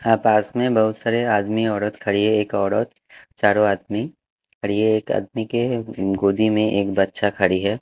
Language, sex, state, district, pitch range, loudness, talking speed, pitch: Hindi, male, Haryana, Jhajjar, 100-110 Hz, -20 LUFS, 185 wpm, 105 Hz